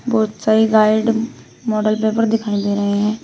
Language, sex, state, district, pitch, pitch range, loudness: Hindi, female, Uttar Pradesh, Shamli, 220 Hz, 215-225 Hz, -17 LUFS